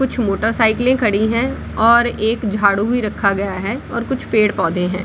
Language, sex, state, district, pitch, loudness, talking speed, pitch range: Hindi, female, Bihar, Samastipur, 220 Hz, -17 LUFS, 190 wpm, 200-235 Hz